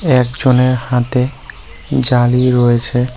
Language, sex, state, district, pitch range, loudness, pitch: Bengali, male, West Bengal, Cooch Behar, 125-130 Hz, -13 LUFS, 125 Hz